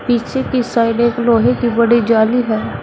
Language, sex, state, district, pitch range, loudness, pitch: Hindi, female, Uttar Pradesh, Shamli, 230-240 Hz, -14 LUFS, 235 Hz